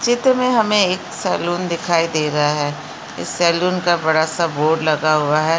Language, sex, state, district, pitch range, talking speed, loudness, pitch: Hindi, female, Uttarakhand, Uttarkashi, 155-180 Hz, 195 wpm, -18 LUFS, 170 Hz